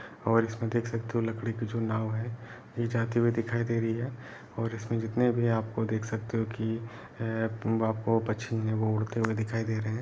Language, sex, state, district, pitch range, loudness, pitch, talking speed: Hindi, male, Uttar Pradesh, Jalaun, 110-115 Hz, -30 LUFS, 115 Hz, 220 wpm